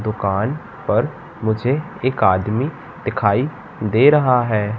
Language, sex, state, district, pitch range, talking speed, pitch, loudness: Hindi, male, Madhya Pradesh, Katni, 105-135 Hz, 115 wpm, 120 Hz, -19 LUFS